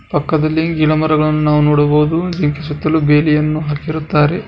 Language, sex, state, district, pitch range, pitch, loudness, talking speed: Kannada, male, Karnataka, Bijapur, 150-155 Hz, 155 Hz, -14 LUFS, 105 wpm